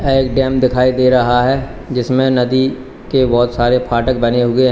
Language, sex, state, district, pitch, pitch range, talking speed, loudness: Hindi, male, Uttar Pradesh, Lalitpur, 130 Hz, 125-130 Hz, 190 wpm, -14 LUFS